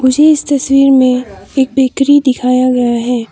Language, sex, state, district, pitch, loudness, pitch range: Hindi, female, Arunachal Pradesh, Papum Pare, 260 Hz, -11 LUFS, 250-275 Hz